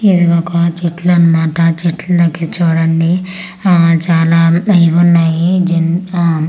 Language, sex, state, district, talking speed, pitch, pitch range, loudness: Telugu, female, Andhra Pradesh, Manyam, 120 wpm, 170 Hz, 165-175 Hz, -12 LUFS